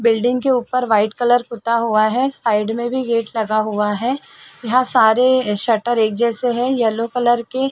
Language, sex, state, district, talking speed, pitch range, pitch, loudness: Hindi, female, Chhattisgarh, Sarguja, 195 wpm, 225-250 Hz, 235 Hz, -17 LUFS